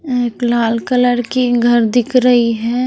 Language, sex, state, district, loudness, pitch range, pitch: Hindi, female, Bihar, West Champaran, -14 LUFS, 235-250 Hz, 245 Hz